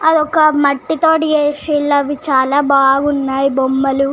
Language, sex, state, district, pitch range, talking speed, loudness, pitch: Telugu, female, Telangana, Nalgonda, 275-305 Hz, 115 wpm, -14 LUFS, 285 Hz